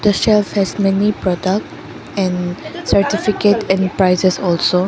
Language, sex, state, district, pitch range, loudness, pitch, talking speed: English, female, Arunachal Pradesh, Lower Dibang Valley, 185-205 Hz, -16 LUFS, 195 Hz, 125 wpm